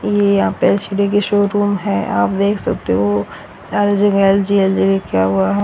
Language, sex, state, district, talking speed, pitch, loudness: Hindi, female, Haryana, Rohtak, 140 wpm, 200 Hz, -15 LUFS